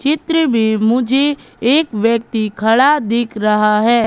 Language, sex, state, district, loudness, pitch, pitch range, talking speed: Hindi, female, Madhya Pradesh, Katni, -14 LUFS, 235 Hz, 220-280 Hz, 130 wpm